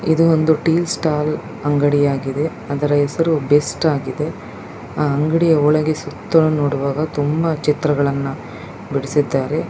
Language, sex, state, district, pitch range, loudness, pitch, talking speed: Kannada, male, Karnataka, Dakshina Kannada, 145-160 Hz, -18 LUFS, 150 Hz, 80 wpm